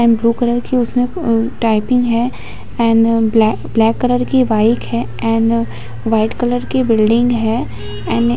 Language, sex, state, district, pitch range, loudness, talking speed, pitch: Hindi, female, Chhattisgarh, Bilaspur, 155-245 Hz, -15 LUFS, 160 wpm, 230 Hz